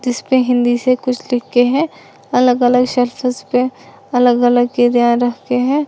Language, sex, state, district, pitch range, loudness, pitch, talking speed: Hindi, female, Uttar Pradesh, Lalitpur, 245-255 Hz, -15 LUFS, 245 Hz, 165 wpm